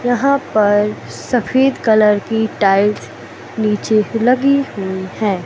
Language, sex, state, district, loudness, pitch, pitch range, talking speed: Hindi, male, Madhya Pradesh, Katni, -15 LUFS, 215 Hz, 205-245 Hz, 110 wpm